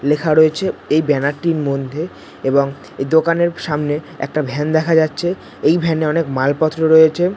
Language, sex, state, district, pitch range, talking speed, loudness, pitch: Bengali, male, West Bengal, North 24 Parganas, 145-165 Hz, 165 wpm, -17 LUFS, 155 Hz